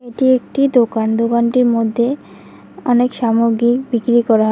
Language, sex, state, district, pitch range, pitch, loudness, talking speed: Bengali, female, West Bengal, Cooch Behar, 230-250 Hz, 235 Hz, -15 LUFS, 135 wpm